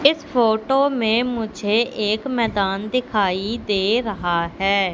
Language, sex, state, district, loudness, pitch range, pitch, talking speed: Hindi, female, Madhya Pradesh, Katni, -20 LUFS, 200-240 Hz, 220 Hz, 120 wpm